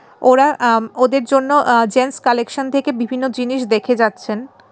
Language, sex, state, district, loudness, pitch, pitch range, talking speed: Bengali, female, Tripura, West Tripura, -16 LUFS, 255 Hz, 235-270 Hz, 150 wpm